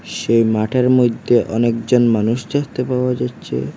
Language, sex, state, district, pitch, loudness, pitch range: Bengali, male, Assam, Hailakandi, 120 Hz, -17 LUFS, 115-125 Hz